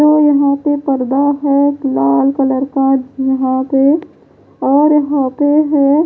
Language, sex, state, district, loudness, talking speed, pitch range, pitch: Hindi, female, Punjab, Pathankot, -13 LUFS, 140 wpm, 270-290 Hz, 280 Hz